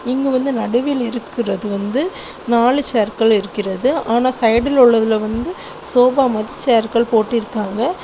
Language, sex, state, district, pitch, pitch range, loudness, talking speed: Tamil, female, Tamil Nadu, Kanyakumari, 235 Hz, 220-260 Hz, -17 LUFS, 120 wpm